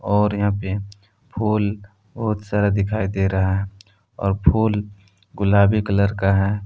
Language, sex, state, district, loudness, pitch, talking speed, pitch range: Hindi, male, Jharkhand, Palamu, -20 LUFS, 100 Hz, 145 wpm, 100-105 Hz